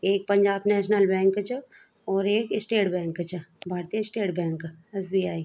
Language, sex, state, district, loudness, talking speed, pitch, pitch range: Garhwali, female, Uttarakhand, Tehri Garhwal, -26 LUFS, 165 wpm, 195 Hz, 180-205 Hz